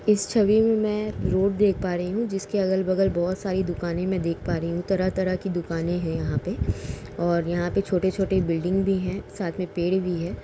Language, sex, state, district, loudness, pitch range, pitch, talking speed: Hindi, female, Uttar Pradesh, Jalaun, -25 LUFS, 175-195 Hz, 185 Hz, 225 wpm